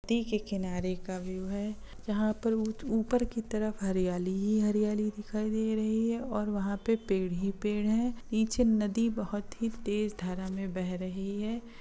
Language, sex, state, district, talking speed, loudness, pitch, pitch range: Hindi, female, Bihar, Gopalganj, 170 wpm, -32 LUFS, 210 Hz, 195-225 Hz